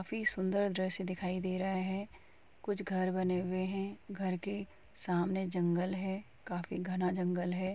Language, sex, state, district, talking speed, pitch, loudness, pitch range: Hindi, female, Uttar Pradesh, Muzaffarnagar, 165 wpm, 185 Hz, -36 LUFS, 180-195 Hz